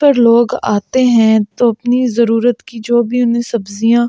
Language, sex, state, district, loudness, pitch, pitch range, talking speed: Hindi, female, Delhi, New Delhi, -13 LUFS, 235 Hz, 225-245 Hz, 175 wpm